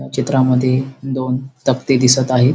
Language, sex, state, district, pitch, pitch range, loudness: Marathi, male, Maharashtra, Sindhudurg, 130 Hz, 125-135 Hz, -16 LUFS